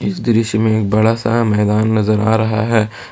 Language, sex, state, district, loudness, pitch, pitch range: Hindi, male, Jharkhand, Ranchi, -15 LUFS, 110 Hz, 105-115 Hz